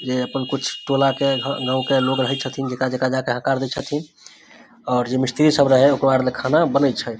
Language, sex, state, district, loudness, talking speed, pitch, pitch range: Maithili, male, Bihar, Samastipur, -20 LUFS, 250 wpm, 135 Hz, 130-140 Hz